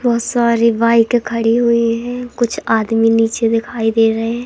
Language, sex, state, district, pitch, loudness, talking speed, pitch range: Hindi, female, Madhya Pradesh, Katni, 230 Hz, -15 LUFS, 175 wpm, 225-240 Hz